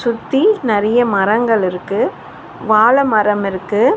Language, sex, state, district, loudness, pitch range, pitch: Tamil, female, Tamil Nadu, Chennai, -14 LUFS, 205-240 Hz, 215 Hz